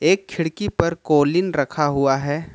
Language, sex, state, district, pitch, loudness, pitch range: Hindi, male, Jharkhand, Ranchi, 150 Hz, -20 LUFS, 140-165 Hz